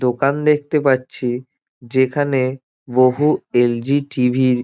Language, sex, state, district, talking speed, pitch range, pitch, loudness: Bengali, male, West Bengal, Dakshin Dinajpur, 130 wpm, 125-140 Hz, 130 Hz, -18 LUFS